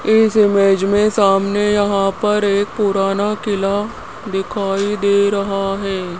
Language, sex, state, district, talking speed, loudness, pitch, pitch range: Hindi, female, Rajasthan, Jaipur, 125 wpm, -16 LUFS, 200 Hz, 195-210 Hz